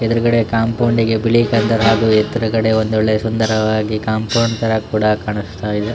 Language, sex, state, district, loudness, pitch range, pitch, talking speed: Kannada, male, Karnataka, Shimoga, -16 LUFS, 110-115 Hz, 110 Hz, 160 wpm